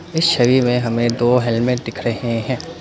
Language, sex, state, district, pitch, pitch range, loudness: Hindi, male, Assam, Kamrup Metropolitan, 120 Hz, 120-130 Hz, -17 LUFS